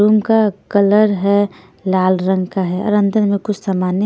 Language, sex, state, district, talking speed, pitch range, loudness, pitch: Hindi, female, Haryana, Rohtak, 190 wpm, 190-210 Hz, -15 LUFS, 200 Hz